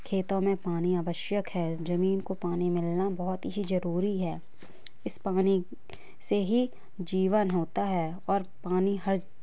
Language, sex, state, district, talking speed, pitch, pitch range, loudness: Hindi, female, Jharkhand, Sahebganj, 145 wpm, 190 Hz, 175-195 Hz, -30 LUFS